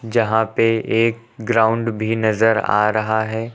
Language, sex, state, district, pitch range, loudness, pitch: Hindi, male, Uttar Pradesh, Lucknow, 110-115 Hz, -18 LUFS, 110 Hz